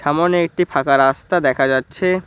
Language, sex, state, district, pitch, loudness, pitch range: Bengali, male, West Bengal, Cooch Behar, 145 Hz, -16 LUFS, 135-175 Hz